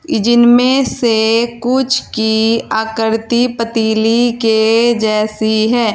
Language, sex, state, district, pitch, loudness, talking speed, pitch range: Hindi, female, Uttar Pradesh, Saharanpur, 230 Hz, -13 LUFS, 90 wpm, 220-240 Hz